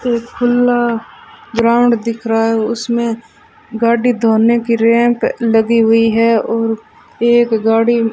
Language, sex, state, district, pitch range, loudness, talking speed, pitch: Hindi, female, Rajasthan, Bikaner, 225-240 Hz, -14 LUFS, 135 wpm, 230 Hz